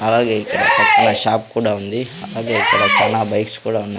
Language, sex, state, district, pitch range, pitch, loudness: Telugu, male, Andhra Pradesh, Sri Satya Sai, 105-115 Hz, 110 Hz, -16 LUFS